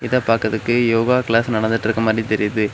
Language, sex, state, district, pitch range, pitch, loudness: Tamil, male, Tamil Nadu, Kanyakumari, 110-120 Hz, 115 Hz, -18 LUFS